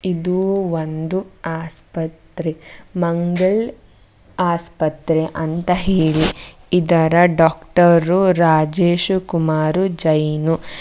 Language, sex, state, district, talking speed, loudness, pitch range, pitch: Kannada, female, Karnataka, Mysore, 65 wpm, -18 LUFS, 160-180 Hz, 165 Hz